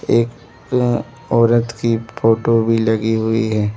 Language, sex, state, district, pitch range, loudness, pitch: Hindi, male, Arunachal Pradesh, Lower Dibang Valley, 110-115 Hz, -17 LUFS, 115 Hz